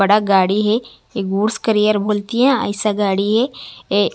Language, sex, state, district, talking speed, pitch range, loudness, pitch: Hindi, female, Chhattisgarh, Raipur, 175 wpm, 200-220 Hz, -17 LUFS, 210 Hz